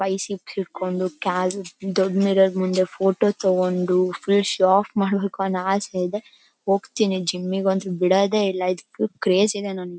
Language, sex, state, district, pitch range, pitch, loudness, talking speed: Kannada, female, Karnataka, Bellary, 185-200 Hz, 190 Hz, -22 LUFS, 145 wpm